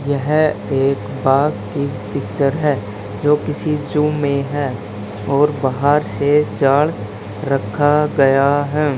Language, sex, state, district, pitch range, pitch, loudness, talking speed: Hindi, male, Haryana, Charkhi Dadri, 130-150 Hz, 140 Hz, -17 LUFS, 120 wpm